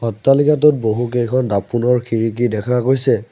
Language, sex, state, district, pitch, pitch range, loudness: Assamese, male, Assam, Sonitpur, 120 Hz, 115-130 Hz, -16 LUFS